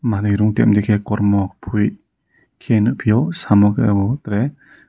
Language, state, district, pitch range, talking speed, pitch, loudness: Kokborok, Tripura, Dhalai, 105-115 Hz, 135 wpm, 105 Hz, -17 LUFS